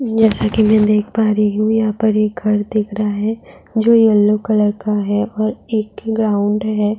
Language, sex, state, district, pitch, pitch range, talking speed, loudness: Hindi, female, Uttar Pradesh, Budaun, 215 Hz, 210-220 Hz, 195 wpm, -16 LUFS